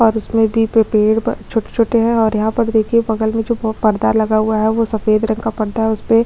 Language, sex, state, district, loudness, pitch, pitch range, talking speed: Hindi, female, Chhattisgarh, Kabirdham, -16 LUFS, 220 Hz, 220-225 Hz, 270 wpm